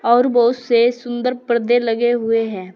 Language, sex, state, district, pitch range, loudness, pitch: Hindi, female, Uttar Pradesh, Saharanpur, 230-245 Hz, -17 LUFS, 240 Hz